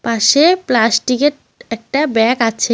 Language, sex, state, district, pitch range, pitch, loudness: Bengali, female, West Bengal, Cooch Behar, 230-290 Hz, 240 Hz, -14 LUFS